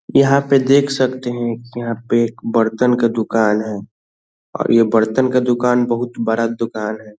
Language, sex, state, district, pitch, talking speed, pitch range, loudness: Hindi, male, Bihar, Saran, 115 Hz, 175 wpm, 110-125 Hz, -17 LUFS